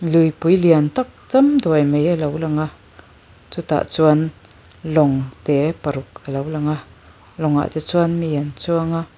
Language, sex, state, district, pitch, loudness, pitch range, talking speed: Mizo, female, Mizoram, Aizawl, 150 Hz, -19 LUFS, 135-165 Hz, 175 wpm